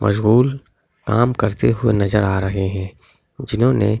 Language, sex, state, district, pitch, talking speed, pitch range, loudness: Hindi, male, Delhi, New Delhi, 105 Hz, 165 wpm, 100-120 Hz, -18 LUFS